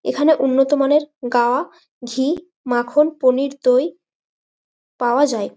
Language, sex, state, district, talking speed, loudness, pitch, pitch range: Bengali, female, West Bengal, Malda, 110 wpm, -18 LUFS, 270 Hz, 245-295 Hz